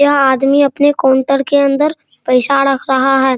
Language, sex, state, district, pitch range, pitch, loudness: Hindi, male, Bihar, Araria, 265-285 Hz, 275 Hz, -12 LUFS